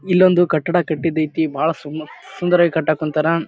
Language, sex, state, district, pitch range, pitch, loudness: Kannada, male, Karnataka, Bijapur, 155-175 Hz, 160 Hz, -18 LUFS